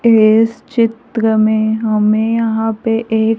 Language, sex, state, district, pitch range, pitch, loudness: Hindi, female, Maharashtra, Gondia, 220-230 Hz, 225 Hz, -14 LUFS